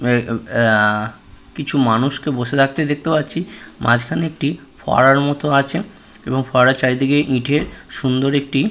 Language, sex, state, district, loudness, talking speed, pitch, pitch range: Bengali, male, West Bengal, Purulia, -17 LUFS, 130 wpm, 135 Hz, 125-145 Hz